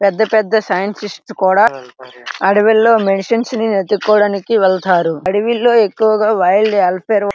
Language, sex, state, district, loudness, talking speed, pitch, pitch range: Telugu, male, Andhra Pradesh, Srikakulam, -13 LUFS, 100 wpm, 205 Hz, 190-220 Hz